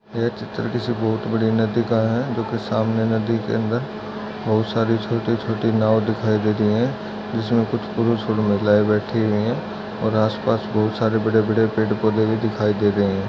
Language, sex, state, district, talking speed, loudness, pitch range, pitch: Hindi, male, Maharashtra, Solapur, 200 wpm, -21 LUFS, 110-115 Hz, 110 Hz